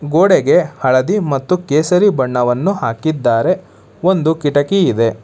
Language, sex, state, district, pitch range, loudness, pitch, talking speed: Kannada, male, Karnataka, Bangalore, 130-180 Hz, -14 LUFS, 150 Hz, 105 wpm